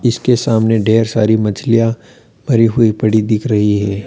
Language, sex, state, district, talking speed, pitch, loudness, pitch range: Hindi, male, Uttar Pradesh, Lalitpur, 160 wpm, 110 Hz, -13 LUFS, 110-115 Hz